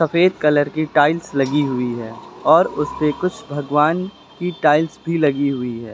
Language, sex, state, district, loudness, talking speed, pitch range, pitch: Hindi, male, Uttar Pradesh, Lucknow, -18 LUFS, 180 wpm, 140-165 Hz, 150 Hz